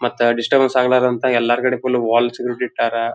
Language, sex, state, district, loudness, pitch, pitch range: Kannada, male, Karnataka, Dharwad, -17 LUFS, 120 Hz, 120-125 Hz